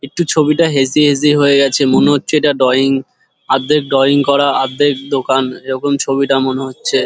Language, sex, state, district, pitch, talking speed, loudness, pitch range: Bengali, male, West Bengal, Dakshin Dinajpur, 140 Hz, 170 wpm, -13 LUFS, 135-145 Hz